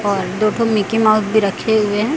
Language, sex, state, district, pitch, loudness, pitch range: Hindi, female, Chhattisgarh, Raipur, 215 Hz, -16 LUFS, 205-220 Hz